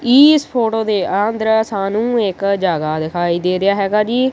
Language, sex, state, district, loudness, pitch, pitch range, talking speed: Punjabi, female, Punjab, Kapurthala, -16 LUFS, 210 Hz, 190-225 Hz, 165 wpm